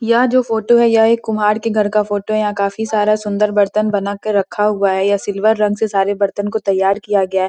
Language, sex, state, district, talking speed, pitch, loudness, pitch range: Hindi, female, Bihar, Muzaffarpur, 265 wpm, 210 Hz, -15 LUFS, 200-220 Hz